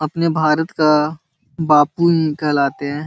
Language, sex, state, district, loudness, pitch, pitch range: Hindi, male, Bihar, Jahanabad, -16 LUFS, 155 Hz, 145-160 Hz